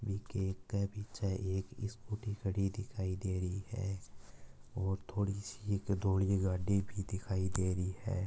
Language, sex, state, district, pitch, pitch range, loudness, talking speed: Marwari, male, Rajasthan, Nagaur, 95 Hz, 95-100 Hz, -37 LUFS, 140 wpm